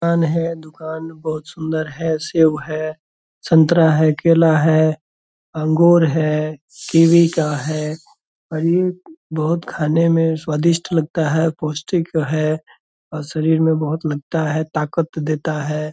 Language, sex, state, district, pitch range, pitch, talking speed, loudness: Hindi, male, Bihar, Purnia, 155-165 Hz, 160 Hz, 140 wpm, -18 LUFS